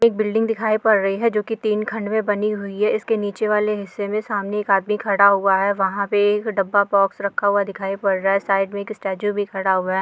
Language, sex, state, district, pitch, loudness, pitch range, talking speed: Hindi, female, Rajasthan, Churu, 205 Hz, -20 LUFS, 195-215 Hz, 250 wpm